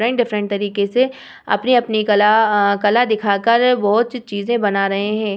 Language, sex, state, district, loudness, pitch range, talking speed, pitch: Hindi, female, Bihar, Vaishali, -16 LUFS, 205-240 Hz, 180 wpm, 215 Hz